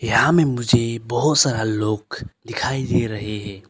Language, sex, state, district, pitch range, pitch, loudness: Hindi, male, Arunachal Pradesh, Longding, 105-130 Hz, 115 Hz, -20 LUFS